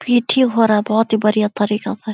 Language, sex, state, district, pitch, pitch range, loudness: Hindi, female, Uttar Pradesh, Deoria, 220 Hz, 210-235 Hz, -16 LUFS